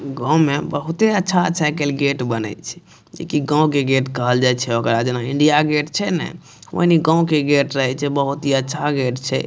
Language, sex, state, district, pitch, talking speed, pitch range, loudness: Maithili, male, Bihar, Madhepura, 145 Hz, 220 wpm, 130-155 Hz, -18 LUFS